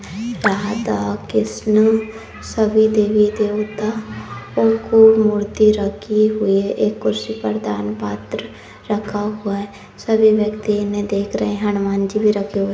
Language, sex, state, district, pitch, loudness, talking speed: Hindi, female, Uttarakhand, Tehri Garhwal, 205 Hz, -18 LUFS, 150 wpm